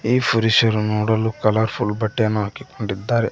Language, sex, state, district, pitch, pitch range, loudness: Kannada, male, Karnataka, Koppal, 110 Hz, 105-115 Hz, -20 LUFS